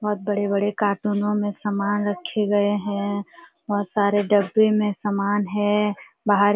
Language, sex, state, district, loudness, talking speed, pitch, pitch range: Hindi, female, Jharkhand, Sahebganj, -22 LUFS, 145 wpm, 205 Hz, 205-210 Hz